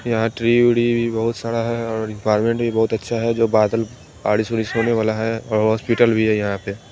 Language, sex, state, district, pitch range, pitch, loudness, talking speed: Hindi, male, Chandigarh, Chandigarh, 110-115 Hz, 115 Hz, -19 LUFS, 240 wpm